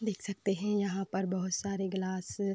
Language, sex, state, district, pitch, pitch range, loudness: Hindi, female, Uttar Pradesh, Varanasi, 195 Hz, 185-200 Hz, -34 LUFS